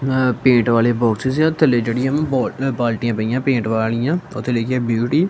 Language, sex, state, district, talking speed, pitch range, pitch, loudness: Punjabi, male, Punjab, Kapurthala, 215 wpm, 115-135 Hz, 125 Hz, -18 LUFS